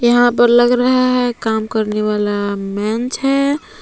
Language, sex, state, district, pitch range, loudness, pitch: Hindi, female, Jharkhand, Palamu, 215-250 Hz, -15 LUFS, 240 Hz